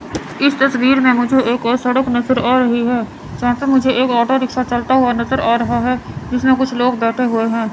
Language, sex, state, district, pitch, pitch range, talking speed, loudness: Hindi, female, Chandigarh, Chandigarh, 250 Hz, 240-260 Hz, 225 wpm, -15 LUFS